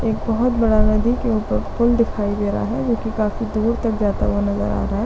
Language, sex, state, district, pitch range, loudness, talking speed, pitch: Hindi, female, Chhattisgarh, Raigarh, 205-230 Hz, -20 LUFS, 260 wpm, 220 Hz